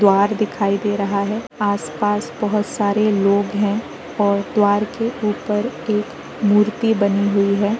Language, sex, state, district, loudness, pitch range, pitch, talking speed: Hindi, female, Uttar Pradesh, Varanasi, -19 LUFS, 200-210 Hz, 205 Hz, 145 wpm